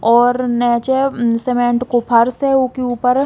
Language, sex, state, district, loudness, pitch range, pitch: Bundeli, female, Uttar Pradesh, Hamirpur, -15 LUFS, 240-255 Hz, 245 Hz